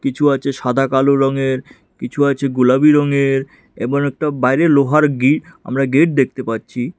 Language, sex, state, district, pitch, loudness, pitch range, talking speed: Bengali, male, Tripura, West Tripura, 135 Hz, -16 LUFS, 130-145 Hz, 155 wpm